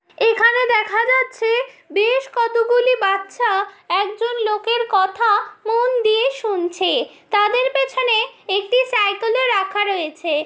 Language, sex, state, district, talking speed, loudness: Bengali, female, West Bengal, Jhargram, 110 wpm, -18 LUFS